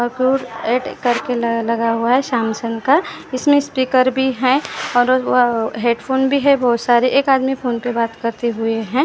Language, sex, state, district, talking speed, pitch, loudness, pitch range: Hindi, female, Maharashtra, Gondia, 170 wpm, 245 Hz, -17 LUFS, 235-265 Hz